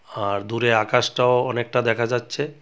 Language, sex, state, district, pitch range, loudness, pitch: Bengali, male, Tripura, West Tripura, 115-125 Hz, -21 LUFS, 120 Hz